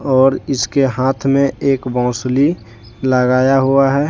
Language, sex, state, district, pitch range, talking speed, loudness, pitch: Hindi, male, Jharkhand, Deoghar, 125-135 Hz, 130 wpm, -15 LUFS, 135 Hz